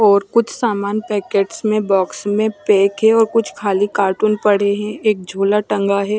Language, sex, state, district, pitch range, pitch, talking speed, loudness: Hindi, female, Maharashtra, Washim, 200-215 Hz, 205 Hz, 185 wpm, -16 LUFS